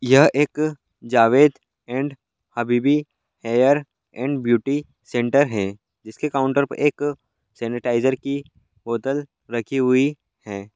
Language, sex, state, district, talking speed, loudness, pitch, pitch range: Hindi, male, Bihar, Gopalganj, 110 wpm, -21 LUFS, 130 Hz, 120-140 Hz